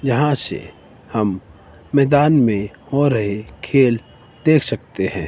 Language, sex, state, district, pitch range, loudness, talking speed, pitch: Hindi, male, Himachal Pradesh, Shimla, 100-140 Hz, -18 LUFS, 125 wpm, 120 Hz